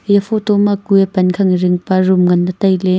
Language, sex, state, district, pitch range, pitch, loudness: Wancho, female, Arunachal Pradesh, Longding, 180-200 Hz, 190 Hz, -13 LUFS